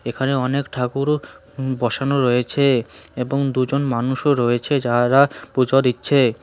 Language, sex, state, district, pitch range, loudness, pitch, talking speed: Bengali, male, West Bengal, Cooch Behar, 125-140 Hz, -19 LUFS, 130 Hz, 120 wpm